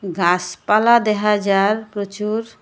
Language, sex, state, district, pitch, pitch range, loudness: Bengali, female, Assam, Hailakandi, 210 Hz, 195-215 Hz, -18 LUFS